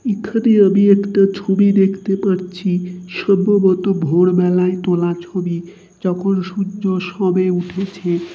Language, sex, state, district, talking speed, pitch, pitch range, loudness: Bengali, male, West Bengal, North 24 Parganas, 110 wpm, 190 Hz, 180-195 Hz, -16 LUFS